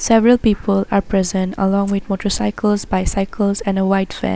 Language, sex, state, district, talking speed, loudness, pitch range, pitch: English, female, Assam, Sonitpur, 165 wpm, -17 LUFS, 195-210 Hz, 200 Hz